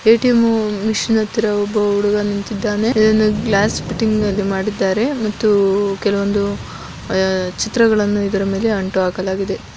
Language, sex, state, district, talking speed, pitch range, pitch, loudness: Kannada, female, Karnataka, Dakshina Kannada, 90 wpm, 200-220 Hz, 205 Hz, -17 LUFS